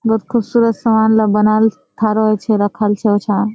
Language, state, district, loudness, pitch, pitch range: Surjapuri, Bihar, Kishanganj, -14 LUFS, 215 Hz, 210-225 Hz